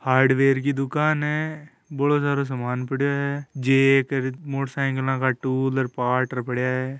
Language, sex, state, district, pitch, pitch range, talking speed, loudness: Hindi, male, Rajasthan, Nagaur, 135 Hz, 130-140 Hz, 145 wpm, -23 LUFS